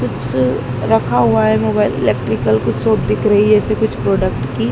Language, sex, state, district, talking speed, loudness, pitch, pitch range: Hindi, female, Madhya Pradesh, Dhar, 190 wpm, -15 LUFS, 120 Hz, 110-130 Hz